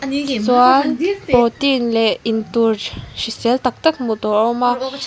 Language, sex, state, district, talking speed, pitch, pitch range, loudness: Mizo, female, Mizoram, Aizawl, 140 wpm, 245 Hz, 225-275 Hz, -17 LUFS